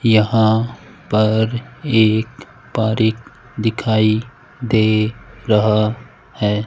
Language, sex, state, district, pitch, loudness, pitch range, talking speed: Hindi, male, Rajasthan, Jaipur, 110 Hz, -17 LUFS, 110-120 Hz, 70 wpm